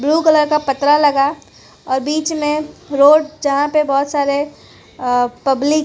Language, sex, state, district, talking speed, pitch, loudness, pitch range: Hindi, female, Gujarat, Valsad, 165 wpm, 290 Hz, -15 LUFS, 275-305 Hz